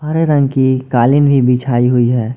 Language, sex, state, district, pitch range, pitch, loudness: Hindi, male, Jharkhand, Garhwa, 125-140 Hz, 130 Hz, -12 LUFS